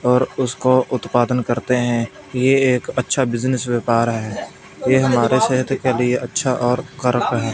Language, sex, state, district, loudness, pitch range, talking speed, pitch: Hindi, male, Punjab, Fazilka, -18 LUFS, 120-130 Hz, 160 wpm, 125 Hz